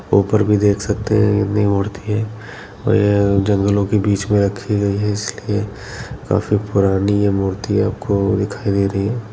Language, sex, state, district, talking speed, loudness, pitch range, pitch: Hindi, male, Maharashtra, Sindhudurg, 175 wpm, -17 LUFS, 100-105 Hz, 105 Hz